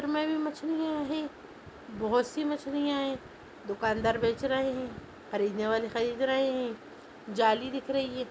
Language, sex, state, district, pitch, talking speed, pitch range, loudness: Hindi, female, Chhattisgarh, Sarguja, 260 Hz, 150 wpm, 225-290 Hz, -31 LUFS